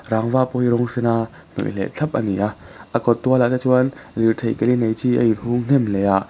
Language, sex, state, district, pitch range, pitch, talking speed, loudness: Mizo, male, Mizoram, Aizawl, 110-125 Hz, 120 Hz, 255 wpm, -20 LUFS